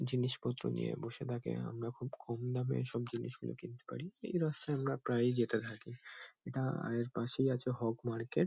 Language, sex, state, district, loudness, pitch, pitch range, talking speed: Bengali, male, West Bengal, Kolkata, -38 LUFS, 120 Hz, 115-130 Hz, 170 wpm